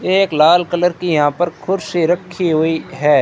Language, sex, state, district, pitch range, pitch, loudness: Hindi, male, Rajasthan, Bikaner, 160-180 Hz, 175 Hz, -16 LUFS